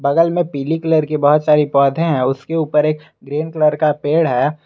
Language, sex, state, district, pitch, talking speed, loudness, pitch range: Hindi, male, Jharkhand, Garhwa, 150 Hz, 220 wpm, -16 LUFS, 145-160 Hz